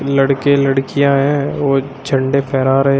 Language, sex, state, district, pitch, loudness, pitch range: Hindi, male, Uttar Pradesh, Shamli, 140 Hz, -15 LUFS, 135-140 Hz